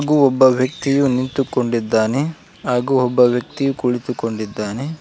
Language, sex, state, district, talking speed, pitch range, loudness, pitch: Kannada, male, Karnataka, Koppal, 120 wpm, 120-140 Hz, -18 LUFS, 130 Hz